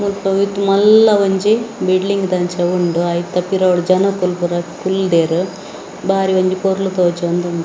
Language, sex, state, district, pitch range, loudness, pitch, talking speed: Tulu, female, Karnataka, Dakshina Kannada, 175-195 Hz, -15 LUFS, 185 Hz, 125 wpm